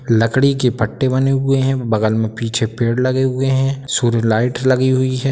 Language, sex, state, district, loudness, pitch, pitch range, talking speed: Hindi, male, Bihar, Sitamarhi, -16 LUFS, 130 Hz, 115-135 Hz, 205 wpm